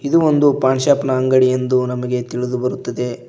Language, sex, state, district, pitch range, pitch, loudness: Kannada, male, Karnataka, Koppal, 125-135 Hz, 130 Hz, -17 LUFS